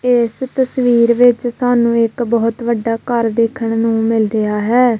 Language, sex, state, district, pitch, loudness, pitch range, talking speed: Punjabi, female, Punjab, Kapurthala, 235 Hz, -15 LUFS, 230-245 Hz, 155 wpm